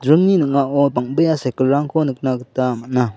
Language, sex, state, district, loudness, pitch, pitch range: Garo, male, Meghalaya, South Garo Hills, -17 LUFS, 135 Hz, 125-150 Hz